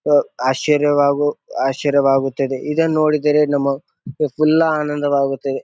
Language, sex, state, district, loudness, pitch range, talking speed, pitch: Kannada, male, Karnataka, Bijapur, -17 LUFS, 135-150 Hz, 85 wpm, 145 Hz